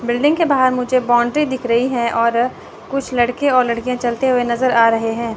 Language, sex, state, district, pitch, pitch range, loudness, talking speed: Hindi, female, Chandigarh, Chandigarh, 245 Hz, 235-260 Hz, -16 LUFS, 210 wpm